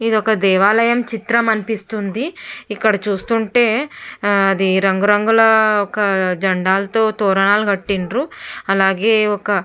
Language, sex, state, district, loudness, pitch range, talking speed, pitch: Telugu, female, Andhra Pradesh, Chittoor, -16 LUFS, 195-225 Hz, 105 wpm, 210 Hz